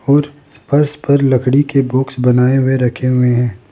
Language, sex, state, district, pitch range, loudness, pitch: Hindi, male, Rajasthan, Jaipur, 125-140 Hz, -14 LUFS, 130 Hz